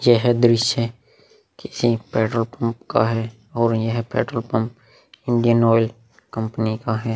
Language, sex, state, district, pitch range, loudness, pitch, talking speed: Hindi, male, Uttar Pradesh, Muzaffarnagar, 115-120 Hz, -20 LUFS, 115 Hz, 135 wpm